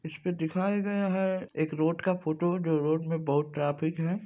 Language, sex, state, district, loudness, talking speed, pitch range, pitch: Maithili, male, Bihar, Supaul, -29 LUFS, 195 wpm, 155-185 Hz, 165 Hz